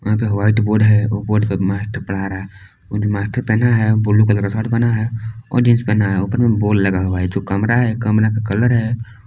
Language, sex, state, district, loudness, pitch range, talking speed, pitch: Hindi, male, Jharkhand, Palamu, -17 LUFS, 100-115 Hz, 260 wpm, 105 Hz